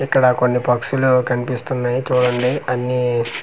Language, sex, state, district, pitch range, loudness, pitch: Telugu, male, Andhra Pradesh, Manyam, 125-130 Hz, -18 LUFS, 125 Hz